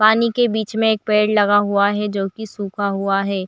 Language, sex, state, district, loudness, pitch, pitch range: Hindi, female, Chhattisgarh, Bilaspur, -18 LUFS, 210 Hz, 200-220 Hz